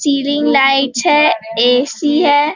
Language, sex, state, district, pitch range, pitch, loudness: Hindi, female, Chhattisgarh, Bastar, 245-290 Hz, 275 Hz, -13 LUFS